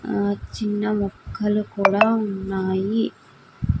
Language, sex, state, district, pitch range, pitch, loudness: Telugu, female, Andhra Pradesh, Sri Satya Sai, 190-210 Hz, 200 Hz, -23 LUFS